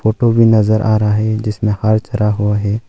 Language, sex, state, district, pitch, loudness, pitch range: Hindi, male, Arunachal Pradesh, Longding, 110 Hz, -14 LUFS, 105-110 Hz